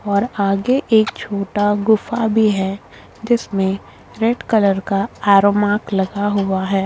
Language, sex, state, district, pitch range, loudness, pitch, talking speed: Hindi, female, Chhattisgarh, Korba, 195-220 Hz, -17 LUFS, 205 Hz, 130 wpm